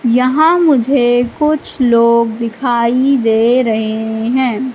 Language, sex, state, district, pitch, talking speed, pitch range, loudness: Hindi, female, Madhya Pradesh, Katni, 245 Hz, 100 wpm, 230-260 Hz, -13 LUFS